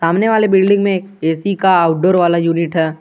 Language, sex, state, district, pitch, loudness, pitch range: Hindi, male, Jharkhand, Garhwa, 180 Hz, -14 LUFS, 165-195 Hz